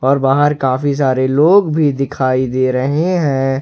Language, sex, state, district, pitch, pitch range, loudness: Hindi, male, Jharkhand, Ranchi, 135 Hz, 130-145 Hz, -14 LUFS